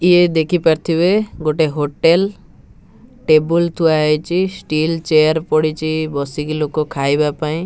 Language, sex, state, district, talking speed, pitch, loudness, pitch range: Odia, male, Odisha, Nuapada, 110 wpm, 155 Hz, -16 LUFS, 155-170 Hz